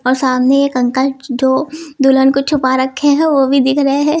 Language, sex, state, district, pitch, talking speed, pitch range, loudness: Hindi, female, Uttar Pradesh, Lucknow, 270 Hz, 200 wpm, 260-285 Hz, -13 LUFS